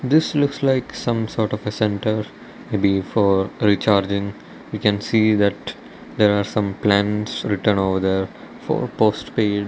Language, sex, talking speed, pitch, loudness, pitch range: English, male, 155 wpm, 105 Hz, -20 LUFS, 100-110 Hz